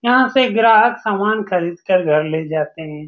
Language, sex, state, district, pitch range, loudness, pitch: Hindi, male, Bihar, Saran, 160-225 Hz, -16 LUFS, 190 Hz